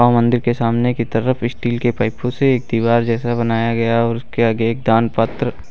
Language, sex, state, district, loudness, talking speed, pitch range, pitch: Hindi, male, Uttar Pradesh, Lucknow, -17 LUFS, 210 wpm, 115-120 Hz, 115 Hz